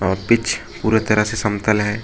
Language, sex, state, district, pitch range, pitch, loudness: Hindi, male, Arunachal Pradesh, Lower Dibang Valley, 105-110 Hz, 105 Hz, -18 LUFS